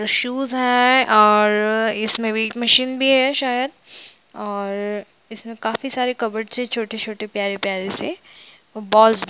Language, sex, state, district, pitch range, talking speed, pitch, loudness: Hindi, female, Jharkhand, Jamtara, 215-250 Hz, 130 wpm, 225 Hz, -19 LUFS